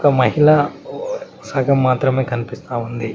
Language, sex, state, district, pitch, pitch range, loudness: Telugu, male, Telangana, Mahabubabad, 130 Hz, 120-145 Hz, -18 LUFS